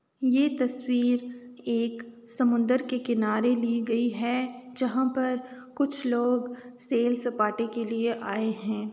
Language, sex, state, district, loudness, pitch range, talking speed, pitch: Hindi, female, Uttar Pradesh, Jalaun, -27 LUFS, 230-250 Hz, 140 wpm, 245 Hz